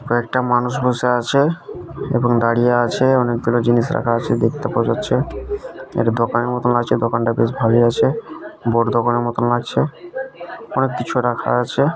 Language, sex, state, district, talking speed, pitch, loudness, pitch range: Bengali, male, West Bengal, Malda, 150 wpm, 120 Hz, -18 LUFS, 120-125 Hz